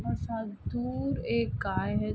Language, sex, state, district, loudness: Hindi, female, Bihar, Saharsa, -32 LUFS